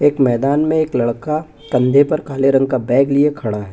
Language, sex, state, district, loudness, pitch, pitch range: Hindi, male, Chhattisgarh, Bastar, -16 LUFS, 135 Hz, 125-150 Hz